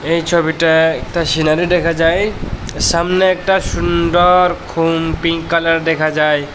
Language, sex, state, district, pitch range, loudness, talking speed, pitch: Bengali, male, Tripura, West Tripura, 160-175 Hz, -14 LUFS, 130 wpm, 165 Hz